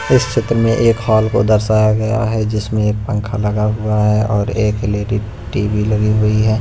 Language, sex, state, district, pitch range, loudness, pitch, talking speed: Hindi, male, Punjab, Pathankot, 105-110 Hz, -15 LUFS, 110 Hz, 200 wpm